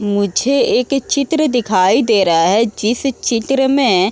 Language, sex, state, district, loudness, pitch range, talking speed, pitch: Hindi, female, Uttar Pradesh, Muzaffarnagar, -14 LUFS, 200-270 Hz, 160 wpm, 230 Hz